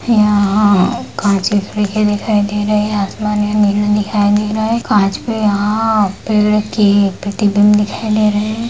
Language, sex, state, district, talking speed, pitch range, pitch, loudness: Hindi, female, Bihar, Purnia, 175 wpm, 205-215 Hz, 210 Hz, -14 LUFS